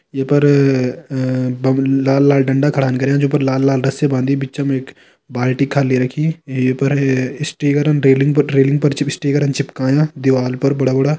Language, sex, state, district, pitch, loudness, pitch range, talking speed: Hindi, male, Uttarakhand, Tehri Garhwal, 135 Hz, -16 LUFS, 130-145 Hz, 175 wpm